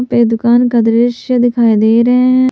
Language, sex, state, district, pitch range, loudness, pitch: Hindi, female, Jharkhand, Palamu, 230-250 Hz, -11 LUFS, 240 Hz